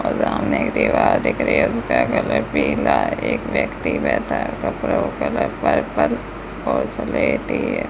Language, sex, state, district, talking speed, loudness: Hindi, female, Rajasthan, Bikaner, 175 wpm, -20 LUFS